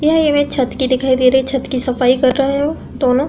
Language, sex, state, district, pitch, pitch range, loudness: Hindi, female, Uttar Pradesh, Deoria, 265 Hz, 255-285 Hz, -15 LUFS